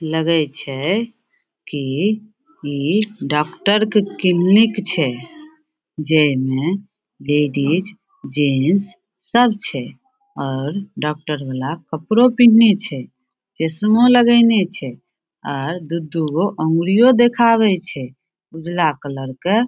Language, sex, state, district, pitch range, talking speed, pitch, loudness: Maithili, female, Bihar, Samastipur, 150-220 Hz, 100 wpm, 180 Hz, -17 LUFS